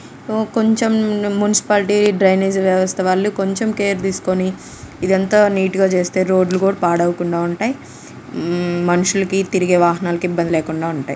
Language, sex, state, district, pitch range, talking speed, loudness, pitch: Telugu, female, Andhra Pradesh, Krishna, 175-205 Hz, 145 wpm, -17 LUFS, 190 Hz